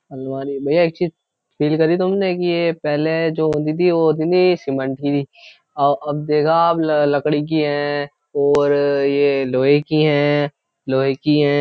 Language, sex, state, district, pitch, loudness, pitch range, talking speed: Hindi, male, Uttar Pradesh, Jyotiba Phule Nagar, 150 Hz, -18 LUFS, 145-165 Hz, 170 wpm